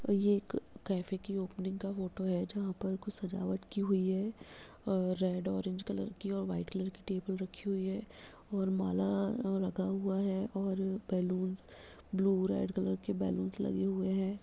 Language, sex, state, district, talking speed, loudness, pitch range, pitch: Hindi, female, Bihar, Begusarai, 185 wpm, -36 LUFS, 185-195 Hz, 190 Hz